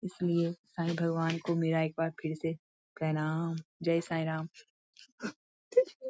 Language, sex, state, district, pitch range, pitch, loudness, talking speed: Hindi, female, Bihar, Lakhisarai, 160-170 Hz, 165 Hz, -33 LUFS, 140 wpm